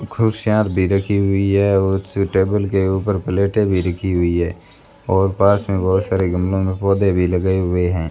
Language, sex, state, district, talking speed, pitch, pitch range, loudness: Hindi, male, Rajasthan, Bikaner, 200 wpm, 95 Hz, 95-100 Hz, -18 LUFS